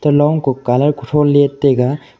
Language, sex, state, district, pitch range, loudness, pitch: Wancho, male, Arunachal Pradesh, Longding, 135-145 Hz, -14 LUFS, 145 Hz